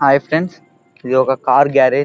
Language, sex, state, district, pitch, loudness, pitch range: Telugu, male, Andhra Pradesh, Krishna, 140 Hz, -14 LUFS, 130-155 Hz